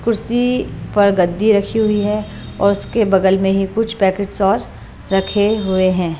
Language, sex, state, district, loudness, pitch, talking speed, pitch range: Hindi, female, Punjab, Pathankot, -16 LUFS, 200 Hz, 165 wpm, 195-215 Hz